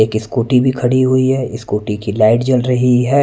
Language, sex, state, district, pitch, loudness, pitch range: Hindi, male, Punjab, Kapurthala, 125 Hz, -14 LUFS, 110-130 Hz